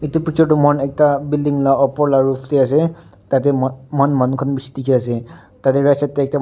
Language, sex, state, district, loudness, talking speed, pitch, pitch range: Nagamese, male, Nagaland, Dimapur, -16 LUFS, 235 wpm, 140 Hz, 135-145 Hz